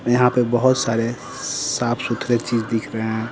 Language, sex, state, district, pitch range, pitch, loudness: Hindi, male, Bihar, Patna, 115-125 Hz, 120 Hz, -20 LUFS